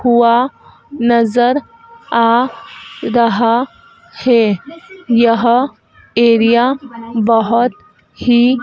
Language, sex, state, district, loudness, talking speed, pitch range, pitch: Hindi, female, Madhya Pradesh, Dhar, -14 LUFS, 70 wpm, 230-260 Hz, 240 Hz